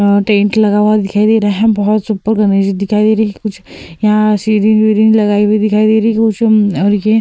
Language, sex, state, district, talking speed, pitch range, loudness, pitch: Hindi, female, Uttar Pradesh, Hamirpur, 225 wpm, 205-215 Hz, -11 LUFS, 215 Hz